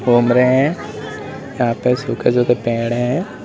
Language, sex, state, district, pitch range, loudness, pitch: Hindi, male, Uttar Pradesh, Lalitpur, 120-135 Hz, -17 LUFS, 125 Hz